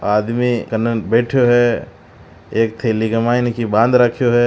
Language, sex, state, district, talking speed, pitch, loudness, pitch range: Marwari, male, Rajasthan, Churu, 145 wpm, 115 Hz, -16 LUFS, 115-120 Hz